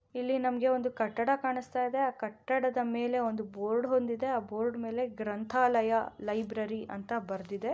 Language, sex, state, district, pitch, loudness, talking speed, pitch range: Kannada, female, Karnataka, Raichur, 235 Hz, -32 LUFS, 145 wpm, 220-255 Hz